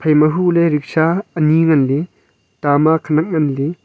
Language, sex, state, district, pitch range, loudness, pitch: Wancho, male, Arunachal Pradesh, Longding, 145-165 Hz, -15 LUFS, 155 Hz